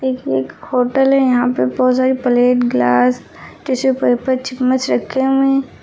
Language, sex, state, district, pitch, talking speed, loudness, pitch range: Hindi, female, Uttar Pradesh, Lucknow, 255 Hz, 165 wpm, -15 LUFS, 245-265 Hz